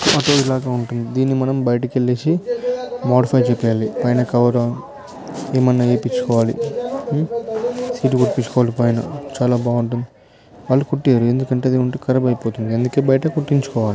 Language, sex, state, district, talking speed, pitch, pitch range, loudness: Telugu, male, Telangana, Karimnagar, 130 wpm, 125 Hz, 120-140 Hz, -18 LUFS